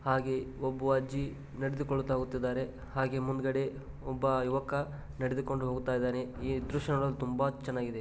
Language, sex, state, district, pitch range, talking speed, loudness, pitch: Kannada, male, Karnataka, Dharwad, 130-135 Hz, 120 wpm, -34 LUFS, 130 Hz